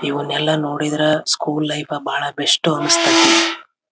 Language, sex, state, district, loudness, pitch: Kannada, male, Karnataka, Belgaum, -16 LUFS, 150 Hz